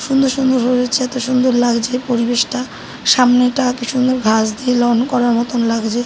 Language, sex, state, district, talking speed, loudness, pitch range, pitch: Bengali, female, West Bengal, North 24 Parganas, 160 wpm, -15 LUFS, 240-255 Hz, 250 Hz